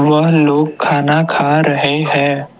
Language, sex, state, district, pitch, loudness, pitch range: Hindi, male, Assam, Kamrup Metropolitan, 145 Hz, -13 LUFS, 145-155 Hz